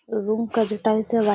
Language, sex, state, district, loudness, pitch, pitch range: Hindi, female, Bihar, Gaya, -23 LUFS, 220 Hz, 215-230 Hz